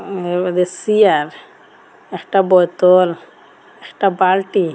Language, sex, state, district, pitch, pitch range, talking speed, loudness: Bengali, female, Assam, Hailakandi, 185 Hz, 180-195 Hz, 100 wpm, -15 LUFS